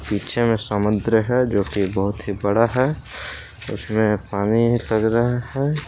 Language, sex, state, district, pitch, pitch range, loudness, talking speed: Hindi, male, Jharkhand, Palamu, 110 Hz, 105-120 Hz, -21 LUFS, 135 wpm